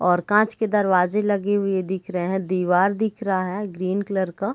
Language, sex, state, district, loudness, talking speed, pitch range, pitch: Hindi, female, Bihar, Sitamarhi, -22 LUFS, 210 wpm, 185-205 Hz, 190 Hz